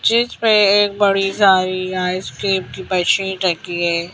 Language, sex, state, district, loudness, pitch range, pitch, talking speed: Hindi, female, Madhya Pradesh, Bhopal, -16 LUFS, 180-200 Hz, 190 Hz, 145 wpm